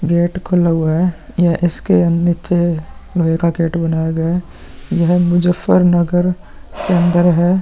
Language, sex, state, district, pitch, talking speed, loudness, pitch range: Hindi, male, Bihar, Vaishali, 175 Hz, 165 wpm, -15 LUFS, 170-175 Hz